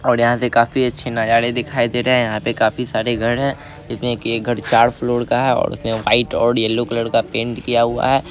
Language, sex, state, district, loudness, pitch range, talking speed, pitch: Hindi, male, Bihar, Araria, -17 LUFS, 115-125 Hz, 260 wpm, 120 Hz